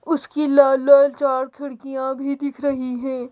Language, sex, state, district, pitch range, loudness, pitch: Hindi, female, Madhya Pradesh, Bhopal, 265-285 Hz, -19 LUFS, 275 Hz